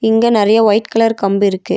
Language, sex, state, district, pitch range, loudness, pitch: Tamil, female, Tamil Nadu, Nilgiris, 200-225 Hz, -13 LUFS, 220 Hz